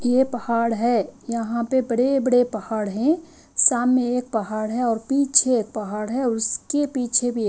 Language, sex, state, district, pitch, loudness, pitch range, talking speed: Hindi, female, Himachal Pradesh, Shimla, 245 Hz, -21 LUFS, 225-260 Hz, 175 wpm